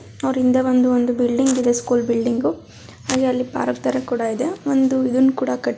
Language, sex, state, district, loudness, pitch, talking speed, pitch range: Kannada, female, Karnataka, Bellary, -19 LUFS, 250 Hz, 175 wpm, 240-260 Hz